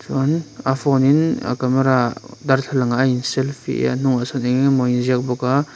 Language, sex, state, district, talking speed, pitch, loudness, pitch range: Mizo, male, Mizoram, Aizawl, 220 wpm, 130 Hz, -19 LUFS, 125-135 Hz